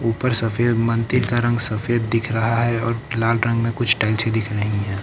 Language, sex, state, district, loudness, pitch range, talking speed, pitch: Hindi, male, Uttar Pradesh, Lucknow, -19 LUFS, 110-120 Hz, 215 wpm, 115 Hz